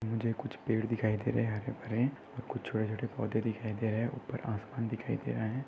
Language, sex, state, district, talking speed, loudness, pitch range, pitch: Hindi, male, Maharashtra, Aurangabad, 235 wpm, -35 LUFS, 110-125 Hz, 115 Hz